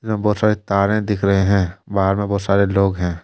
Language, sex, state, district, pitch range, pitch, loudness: Hindi, male, Jharkhand, Deoghar, 95-105 Hz, 100 Hz, -18 LUFS